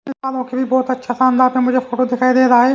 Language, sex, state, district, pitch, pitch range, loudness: Hindi, male, Haryana, Jhajjar, 255 Hz, 255-260 Hz, -16 LUFS